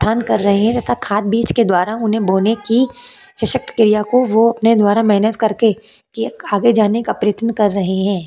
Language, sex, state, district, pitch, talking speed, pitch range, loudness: Hindi, female, Chhattisgarh, Korba, 220 Hz, 190 wpm, 205-230 Hz, -15 LUFS